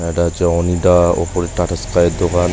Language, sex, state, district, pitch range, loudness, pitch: Bengali, male, West Bengal, Malda, 85-90 Hz, -15 LUFS, 85 Hz